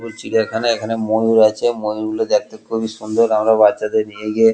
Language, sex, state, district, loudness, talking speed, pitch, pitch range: Bengali, male, West Bengal, Kolkata, -17 LUFS, 185 wpm, 110 Hz, 110-115 Hz